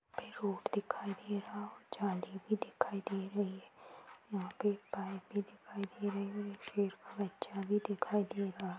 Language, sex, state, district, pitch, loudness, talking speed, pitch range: Hindi, male, Maharashtra, Sindhudurg, 200 Hz, -40 LUFS, 185 wpm, 195-205 Hz